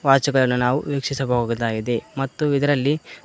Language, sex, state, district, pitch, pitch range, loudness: Kannada, male, Karnataka, Koppal, 135 Hz, 125-140 Hz, -21 LUFS